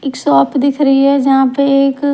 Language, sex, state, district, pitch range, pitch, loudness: Hindi, female, Haryana, Charkhi Dadri, 270-280 Hz, 275 Hz, -12 LUFS